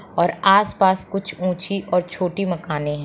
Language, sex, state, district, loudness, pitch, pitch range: Hindi, female, Uttar Pradesh, Muzaffarnagar, -20 LUFS, 180 Hz, 170-195 Hz